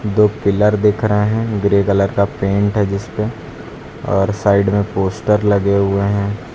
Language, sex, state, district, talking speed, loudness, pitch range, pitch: Hindi, male, Uttar Pradesh, Lucknow, 165 wpm, -16 LUFS, 100-105 Hz, 100 Hz